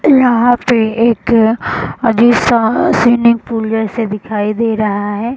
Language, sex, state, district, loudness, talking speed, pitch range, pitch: Hindi, female, Bihar, Darbhanga, -12 LUFS, 135 wpm, 220-240 Hz, 230 Hz